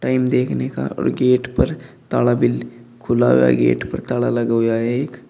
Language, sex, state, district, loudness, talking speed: Hindi, male, Uttar Pradesh, Shamli, -18 LUFS, 190 wpm